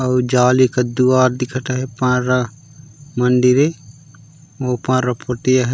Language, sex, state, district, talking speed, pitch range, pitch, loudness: Chhattisgarhi, male, Chhattisgarh, Raigarh, 115 wpm, 125-130 Hz, 130 Hz, -17 LUFS